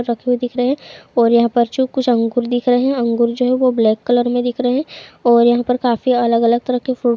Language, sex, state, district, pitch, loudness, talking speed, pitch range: Hindi, female, Uttar Pradesh, Jalaun, 245 Hz, -16 LUFS, 275 wpm, 235-250 Hz